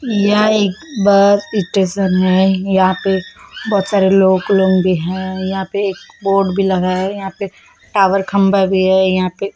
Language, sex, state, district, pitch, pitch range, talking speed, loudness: Hindi, female, Chhattisgarh, Raipur, 195 Hz, 190-200 Hz, 180 wpm, -14 LUFS